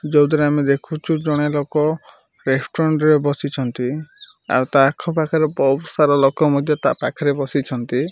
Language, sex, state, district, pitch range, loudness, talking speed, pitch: Odia, male, Odisha, Malkangiri, 135-155 Hz, -18 LUFS, 140 wpm, 145 Hz